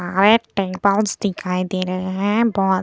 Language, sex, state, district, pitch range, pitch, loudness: Hindi, female, Bihar, Vaishali, 185-205 Hz, 195 Hz, -19 LUFS